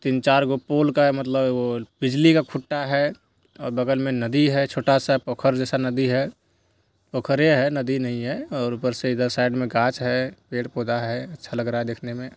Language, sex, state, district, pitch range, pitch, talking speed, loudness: Hindi, male, Bihar, Purnia, 120-140 Hz, 130 Hz, 210 wpm, -22 LUFS